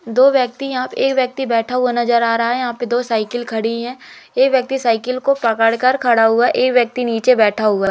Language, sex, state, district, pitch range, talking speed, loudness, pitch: Hindi, female, Madhya Pradesh, Umaria, 230-255 Hz, 235 wpm, -16 LUFS, 245 Hz